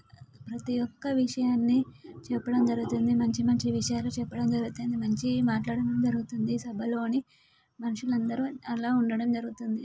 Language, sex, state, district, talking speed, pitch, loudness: Telugu, female, Telangana, Karimnagar, 110 wpm, 235 Hz, -29 LUFS